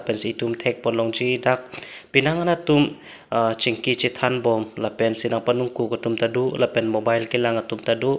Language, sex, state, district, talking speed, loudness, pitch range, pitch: Karbi, male, Assam, Karbi Anglong, 185 wpm, -22 LUFS, 115-125 Hz, 120 Hz